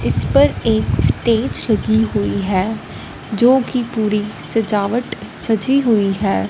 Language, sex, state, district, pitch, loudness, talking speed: Hindi, female, Punjab, Fazilka, 210 Hz, -16 LUFS, 120 wpm